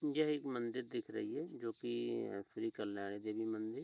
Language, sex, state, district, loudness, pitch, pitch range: Hindi, male, Uttar Pradesh, Hamirpur, -42 LUFS, 110 Hz, 100-120 Hz